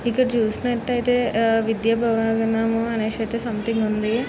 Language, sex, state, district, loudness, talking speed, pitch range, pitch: Telugu, female, Andhra Pradesh, Srikakulam, -21 LUFS, 125 wpm, 225-240 Hz, 225 Hz